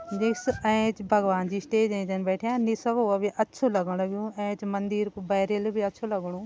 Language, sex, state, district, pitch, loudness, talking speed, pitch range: Garhwali, female, Uttarakhand, Tehri Garhwal, 205 Hz, -27 LUFS, 175 wpm, 195-220 Hz